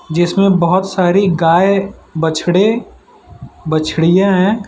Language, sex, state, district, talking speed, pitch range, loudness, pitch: Hindi, male, Gujarat, Valsad, 90 wpm, 165-195 Hz, -13 LUFS, 185 Hz